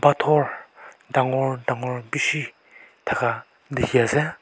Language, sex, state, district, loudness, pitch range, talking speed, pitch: Nagamese, male, Nagaland, Kohima, -23 LUFS, 130-145 Hz, 80 wpm, 135 Hz